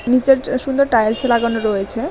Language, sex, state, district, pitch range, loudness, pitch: Bengali, female, West Bengal, Alipurduar, 225-260 Hz, -16 LUFS, 240 Hz